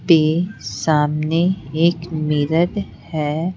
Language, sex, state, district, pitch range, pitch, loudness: Hindi, female, Bihar, Patna, 150-170 Hz, 160 Hz, -19 LUFS